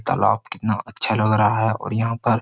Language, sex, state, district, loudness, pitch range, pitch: Hindi, male, Uttar Pradesh, Jyotiba Phule Nagar, -21 LUFS, 110-115 Hz, 110 Hz